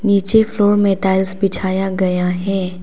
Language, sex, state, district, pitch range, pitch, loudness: Hindi, female, Arunachal Pradesh, Papum Pare, 185-205 Hz, 195 Hz, -16 LUFS